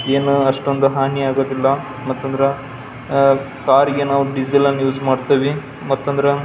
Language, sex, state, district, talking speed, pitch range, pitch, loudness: Kannada, male, Karnataka, Belgaum, 140 wpm, 135-140 Hz, 135 Hz, -17 LUFS